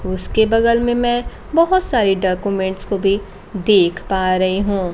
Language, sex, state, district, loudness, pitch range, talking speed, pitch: Hindi, female, Bihar, Kaimur, -17 LUFS, 190-235 Hz, 155 wpm, 200 Hz